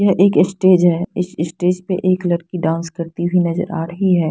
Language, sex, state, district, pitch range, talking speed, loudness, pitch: Hindi, female, Punjab, Fazilka, 170-185 Hz, 220 wpm, -17 LUFS, 175 Hz